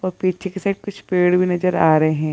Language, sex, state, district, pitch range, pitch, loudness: Hindi, female, Bihar, Gaya, 165-190 Hz, 180 Hz, -19 LUFS